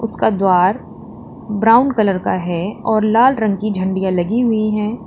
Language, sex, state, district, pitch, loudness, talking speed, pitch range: Hindi, female, Uttar Pradesh, Lalitpur, 215 Hz, -16 LUFS, 165 wpm, 190-225 Hz